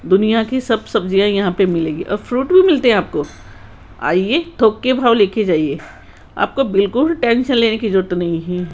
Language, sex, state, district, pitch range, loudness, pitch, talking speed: Hindi, female, Rajasthan, Jaipur, 180-240 Hz, -16 LUFS, 205 Hz, 190 wpm